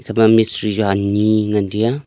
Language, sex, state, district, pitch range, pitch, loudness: Wancho, male, Arunachal Pradesh, Longding, 105-115 Hz, 110 Hz, -16 LUFS